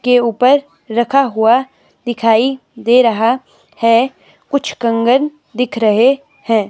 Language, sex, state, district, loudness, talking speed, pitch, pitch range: Hindi, female, Himachal Pradesh, Shimla, -14 LUFS, 115 wpm, 245 Hz, 230-265 Hz